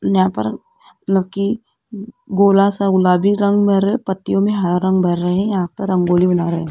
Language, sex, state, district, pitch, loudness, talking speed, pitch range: Hindi, female, Rajasthan, Jaipur, 195 Hz, -16 LUFS, 170 wpm, 180-205 Hz